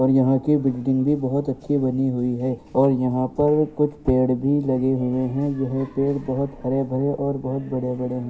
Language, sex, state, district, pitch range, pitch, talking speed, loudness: Hindi, male, Uttar Pradesh, Muzaffarnagar, 130-140 Hz, 135 Hz, 200 wpm, -22 LUFS